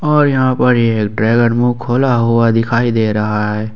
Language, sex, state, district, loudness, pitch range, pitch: Hindi, male, Jharkhand, Ranchi, -13 LUFS, 110-120 Hz, 115 Hz